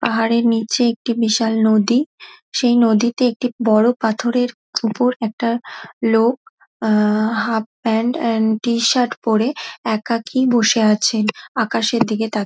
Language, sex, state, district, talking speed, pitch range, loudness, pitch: Bengali, female, West Bengal, Dakshin Dinajpur, 110 wpm, 220-245 Hz, -17 LUFS, 230 Hz